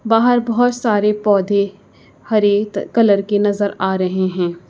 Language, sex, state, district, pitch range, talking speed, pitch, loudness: Hindi, female, Uttar Pradesh, Lucknow, 195-220 Hz, 140 wpm, 205 Hz, -16 LUFS